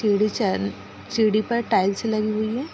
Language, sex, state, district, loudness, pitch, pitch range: Hindi, female, Bihar, Darbhanga, -23 LUFS, 215 Hz, 190-220 Hz